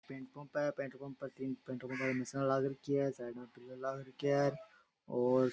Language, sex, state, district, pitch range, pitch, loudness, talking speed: Rajasthani, male, Rajasthan, Nagaur, 130-140 Hz, 135 Hz, -38 LUFS, 240 wpm